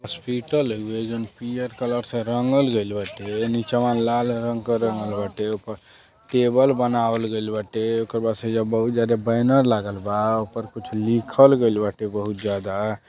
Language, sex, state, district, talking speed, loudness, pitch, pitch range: Bhojpuri, male, Uttar Pradesh, Deoria, 160 wpm, -22 LUFS, 115 Hz, 105-120 Hz